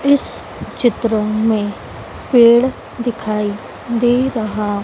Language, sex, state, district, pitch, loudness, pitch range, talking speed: Hindi, female, Madhya Pradesh, Dhar, 225 Hz, -16 LUFS, 215-240 Hz, 85 wpm